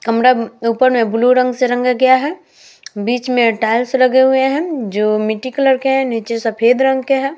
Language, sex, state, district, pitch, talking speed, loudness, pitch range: Hindi, female, Uttar Pradesh, Hamirpur, 250 Hz, 210 wpm, -14 LUFS, 230-265 Hz